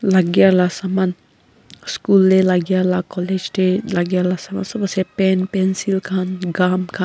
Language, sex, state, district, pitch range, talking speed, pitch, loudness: Nagamese, female, Nagaland, Kohima, 180-190 Hz, 160 wpm, 185 Hz, -18 LUFS